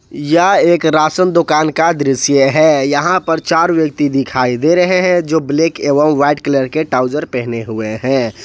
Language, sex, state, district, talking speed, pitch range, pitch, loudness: Hindi, male, Jharkhand, Ranchi, 175 wpm, 135-165 Hz, 150 Hz, -13 LUFS